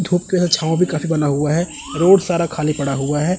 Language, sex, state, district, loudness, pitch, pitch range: Hindi, male, Chandigarh, Chandigarh, -17 LUFS, 165 Hz, 150-175 Hz